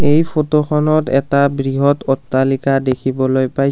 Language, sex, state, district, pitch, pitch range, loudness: Assamese, male, Assam, Kamrup Metropolitan, 135 Hz, 135-150 Hz, -15 LUFS